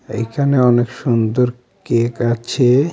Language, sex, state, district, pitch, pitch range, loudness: Bengali, male, West Bengal, Alipurduar, 120 Hz, 115-125 Hz, -16 LUFS